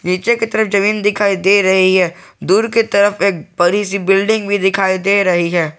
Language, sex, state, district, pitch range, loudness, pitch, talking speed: Hindi, male, Jharkhand, Garhwa, 185-205 Hz, -14 LUFS, 200 Hz, 205 wpm